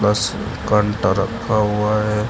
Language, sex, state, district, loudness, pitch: Hindi, male, Uttar Pradesh, Shamli, -19 LUFS, 105 Hz